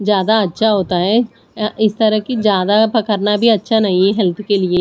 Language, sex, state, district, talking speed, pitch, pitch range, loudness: Hindi, female, Punjab, Pathankot, 200 wpm, 210 Hz, 195-220 Hz, -15 LUFS